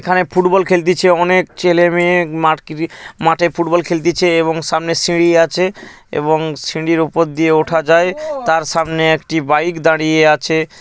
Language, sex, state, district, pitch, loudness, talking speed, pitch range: Bengali, male, West Bengal, Paschim Medinipur, 165 Hz, -14 LUFS, 150 wpm, 160-175 Hz